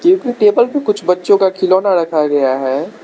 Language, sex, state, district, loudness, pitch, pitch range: Hindi, male, Arunachal Pradesh, Lower Dibang Valley, -13 LUFS, 190 Hz, 155-210 Hz